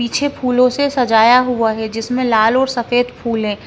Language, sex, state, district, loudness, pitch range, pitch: Hindi, female, Himachal Pradesh, Shimla, -15 LUFS, 225-255 Hz, 245 Hz